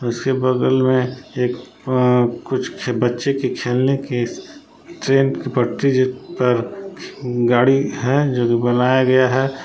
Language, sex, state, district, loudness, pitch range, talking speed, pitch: Hindi, male, Jharkhand, Palamu, -18 LUFS, 125-135 Hz, 125 wpm, 130 Hz